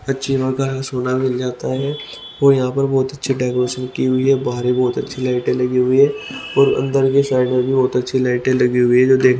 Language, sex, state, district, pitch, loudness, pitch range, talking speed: Hindi, male, Haryana, Rohtak, 130 Hz, -17 LUFS, 125-135 Hz, 235 wpm